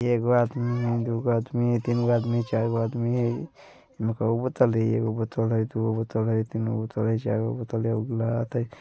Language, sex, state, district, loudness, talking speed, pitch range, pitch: Bajjika, male, Bihar, Vaishali, -26 LUFS, 250 wpm, 110-120 Hz, 115 Hz